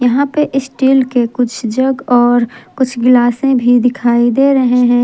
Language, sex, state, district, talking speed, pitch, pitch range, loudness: Hindi, female, Jharkhand, Ranchi, 165 wpm, 250 Hz, 245-265 Hz, -12 LUFS